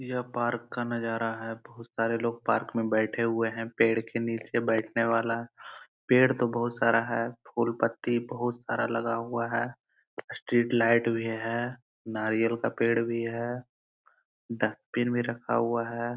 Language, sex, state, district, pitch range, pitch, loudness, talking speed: Hindi, male, Bihar, Araria, 115-120 Hz, 115 Hz, -29 LUFS, 165 wpm